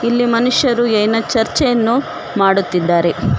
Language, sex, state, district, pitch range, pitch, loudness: Kannada, female, Karnataka, Koppal, 195-245 Hz, 225 Hz, -15 LUFS